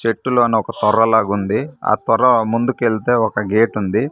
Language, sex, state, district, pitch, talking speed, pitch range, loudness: Telugu, male, Andhra Pradesh, Manyam, 115 Hz, 160 wpm, 105-120 Hz, -16 LUFS